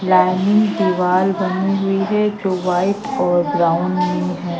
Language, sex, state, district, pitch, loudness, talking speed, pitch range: Hindi, female, Madhya Pradesh, Katni, 185 Hz, -17 LUFS, 145 wpm, 180-195 Hz